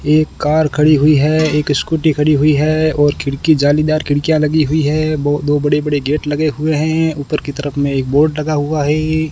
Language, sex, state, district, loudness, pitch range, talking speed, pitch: Hindi, male, Rajasthan, Bikaner, -14 LUFS, 145-155 Hz, 220 wpm, 150 Hz